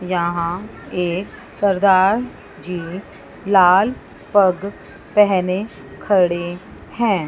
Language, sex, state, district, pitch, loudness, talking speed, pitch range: Hindi, female, Chandigarh, Chandigarh, 185 Hz, -18 LUFS, 75 wpm, 180-200 Hz